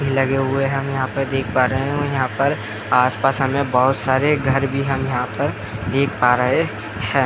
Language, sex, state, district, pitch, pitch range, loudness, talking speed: Hindi, male, Bihar, Muzaffarpur, 135 Hz, 125-135 Hz, -19 LUFS, 225 wpm